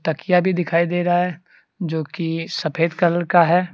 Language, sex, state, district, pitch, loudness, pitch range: Hindi, male, Jharkhand, Deoghar, 175 Hz, -20 LUFS, 165-175 Hz